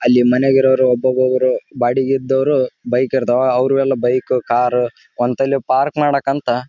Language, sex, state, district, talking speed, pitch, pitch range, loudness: Kannada, male, Karnataka, Raichur, 135 wpm, 130 Hz, 125-135 Hz, -16 LUFS